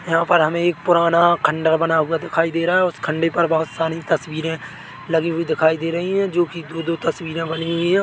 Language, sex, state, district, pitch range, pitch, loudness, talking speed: Hindi, male, Chhattisgarh, Bilaspur, 160-170 Hz, 165 Hz, -19 LUFS, 225 wpm